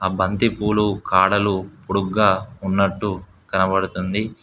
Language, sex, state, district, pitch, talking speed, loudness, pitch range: Telugu, male, Telangana, Hyderabad, 100 Hz, 95 wpm, -20 LUFS, 95-105 Hz